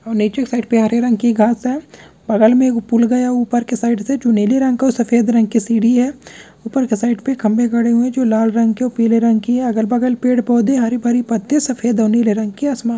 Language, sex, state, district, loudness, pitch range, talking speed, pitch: Hindi, male, Bihar, Purnia, -15 LUFS, 230-250 Hz, 260 wpm, 235 Hz